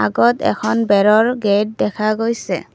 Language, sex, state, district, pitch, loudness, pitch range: Assamese, female, Assam, Kamrup Metropolitan, 215 Hz, -16 LUFS, 205-230 Hz